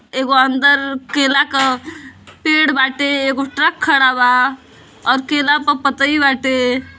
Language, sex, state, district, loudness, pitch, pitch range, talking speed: Bhojpuri, female, Uttar Pradesh, Deoria, -14 LUFS, 275 Hz, 265-290 Hz, 130 wpm